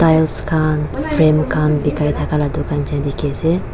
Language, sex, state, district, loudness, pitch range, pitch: Nagamese, female, Nagaland, Dimapur, -16 LUFS, 145-155 Hz, 150 Hz